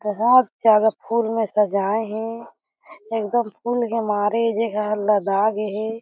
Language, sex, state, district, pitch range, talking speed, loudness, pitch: Chhattisgarhi, female, Chhattisgarh, Jashpur, 210-230 Hz, 160 wpm, -21 LUFS, 220 Hz